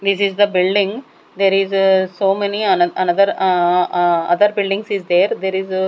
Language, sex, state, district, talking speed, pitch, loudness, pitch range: English, female, Punjab, Kapurthala, 195 wpm, 195 Hz, -16 LUFS, 190-205 Hz